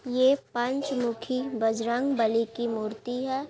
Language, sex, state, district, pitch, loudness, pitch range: Hindi, female, Bihar, Gaya, 245 Hz, -28 LUFS, 230-260 Hz